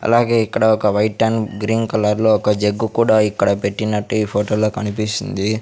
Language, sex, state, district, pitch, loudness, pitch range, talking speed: Telugu, male, Andhra Pradesh, Sri Satya Sai, 110 Hz, -17 LUFS, 105-110 Hz, 170 wpm